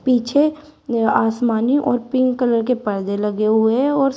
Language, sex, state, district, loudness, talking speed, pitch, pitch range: Hindi, female, Uttar Pradesh, Shamli, -18 LUFS, 170 wpm, 245 Hz, 220-265 Hz